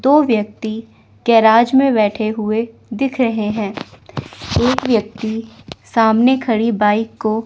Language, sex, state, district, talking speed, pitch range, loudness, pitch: Hindi, female, Chandigarh, Chandigarh, 120 wpm, 220-245 Hz, -16 LUFS, 225 Hz